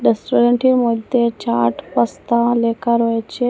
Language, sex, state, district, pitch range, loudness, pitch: Bengali, female, Assam, Hailakandi, 220-240 Hz, -17 LUFS, 235 Hz